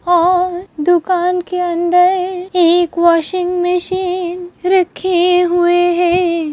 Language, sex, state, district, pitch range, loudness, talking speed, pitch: Hindi, female, Uttar Pradesh, Hamirpur, 350-360 Hz, -14 LUFS, 90 wpm, 355 Hz